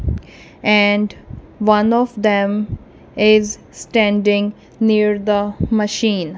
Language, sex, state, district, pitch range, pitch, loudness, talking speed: English, female, Punjab, Kapurthala, 205-215 Hz, 210 Hz, -16 LUFS, 85 wpm